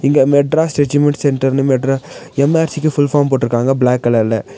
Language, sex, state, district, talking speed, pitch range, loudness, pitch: Tamil, female, Tamil Nadu, Nilgiris, 155 wpm, 130-145 Hz, -14 LUFS, 140 Hz